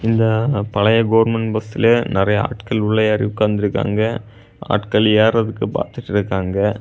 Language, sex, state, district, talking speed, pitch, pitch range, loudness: Tamil, male, Tamil Nadu, Kanyakumari, 125 wpm, 110 Hz, 105-115 Hz, -17 LUFS